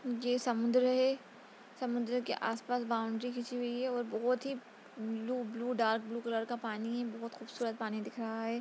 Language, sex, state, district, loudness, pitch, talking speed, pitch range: Hindi, female, Bihar, Jahanabad, -36 LUFS, 240 Hz, 190 wpm, 225-245 Hz